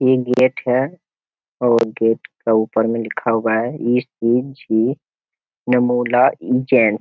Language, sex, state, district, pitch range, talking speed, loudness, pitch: Hindi, male, Bihar, Jamui, 115-125 Hz, 120 wpm, -18 LUFS, 120 Hz